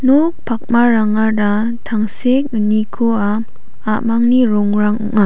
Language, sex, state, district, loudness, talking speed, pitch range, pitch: Garo, female, Meghalaya, South Garo Hills, -15 LUFS, 80 wpm, 215-235 Hz, 220 Hz